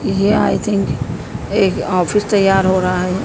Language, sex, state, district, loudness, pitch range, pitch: Hindi, female, Madhya Pradesh, Dhar, -16 LUFS, 185-200 Hz, 195 Hz